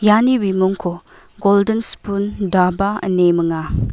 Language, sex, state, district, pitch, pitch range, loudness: Garo, female, Meghalaya, West Garo Hills, 195 Hz, 180-205 Hz, -16 LUFS